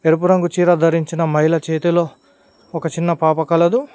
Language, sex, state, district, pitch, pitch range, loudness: Telugu, male, Telangana, Mahabubabad, 165 Hz, 160-175 Hz, -16 LUFS